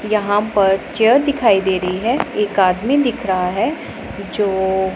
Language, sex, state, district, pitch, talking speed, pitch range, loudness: Hindi, female, Punjab, Pathankot, 205 Hz, 155 wpm, 190-225 Hz, -17 LUFS